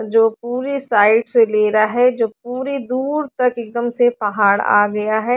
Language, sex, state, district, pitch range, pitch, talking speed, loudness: Hindi, female, Haryana, Rohtak, 215-250 Hz, 235 Hz, 190 wpm, -17 LUFS